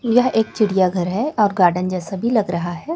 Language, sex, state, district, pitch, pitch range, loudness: Hindi, female, Chhattisgarh, Raipur, 200 Hz, 180-230 Hz, -18 LUFS